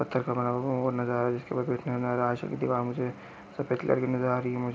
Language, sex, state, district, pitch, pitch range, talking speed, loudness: Hindi, male, Maharashtra, Nagpur, 125 Hz, 120-125 Hz, 215 wpm, -29 LUFS